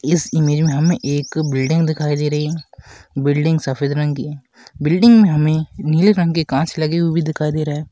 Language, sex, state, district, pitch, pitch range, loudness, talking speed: Hindi, female, Rajasthan, Nagaur, 155 Hz, 145-160 Hz, -17 LUFS, 195 wpm